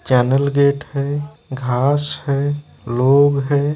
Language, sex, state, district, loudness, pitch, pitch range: Hindi, male, Bihar, Gopalganj, -17 LUFS, 140 Hz, 135-145 Hz